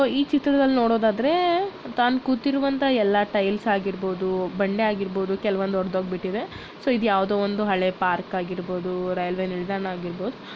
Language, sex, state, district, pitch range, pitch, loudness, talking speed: Kannada, female, Karnataka, Bellary, 185-250 Hz, 200 Hz, -24 LUFS, 120 wpm